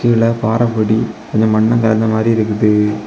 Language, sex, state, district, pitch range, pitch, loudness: Tamil, male, Tamil Nadu, Kanyakumari, 110-115 Hz, 110 Hz, -14 LUFS